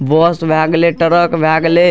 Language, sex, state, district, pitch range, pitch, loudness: Maithili, male, Bihar, Darbhanga, 160-170 Hz, 165 Hz, -12 LUFS